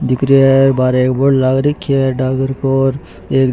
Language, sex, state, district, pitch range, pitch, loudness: Rajasthani, male, Rajasthan, Churu, 130-135 Hz, 135 Hz, -13 LUFS